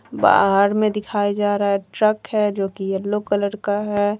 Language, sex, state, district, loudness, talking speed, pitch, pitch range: Hindi, female, Jharkhand, Deoghar, -19 LUFS, 200 wpm, 205 Hz, 200-210 Hz